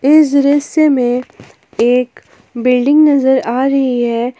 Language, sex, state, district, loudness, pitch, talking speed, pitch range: Hindi, female, Jharkhand, Palamu, -12 LUFS, 260 Hz, 125 wpm, 245-285 Hz